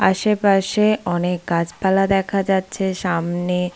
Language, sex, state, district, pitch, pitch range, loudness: Bengali, female, West Bengal, Paschim Medinipur, 190 Hz, 180-195 Hz, -19 LUFS